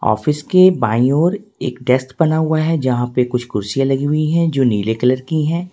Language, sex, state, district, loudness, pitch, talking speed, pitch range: Hindi, male, Jharkhand, Ranchi, -16 LUFS, 135 Hz, 220 wpm, 125-160 Hz